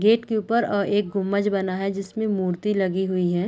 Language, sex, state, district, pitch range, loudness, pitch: Hindi, female, Uttar Pradesh, Deoria, 190-210 Hz, -23 LUFS, 200 Hz